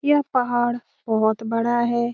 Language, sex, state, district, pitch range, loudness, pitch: Hindi, female, Bihar, Jamui, 230-245 Hz, -22 LUFS, 240 Hz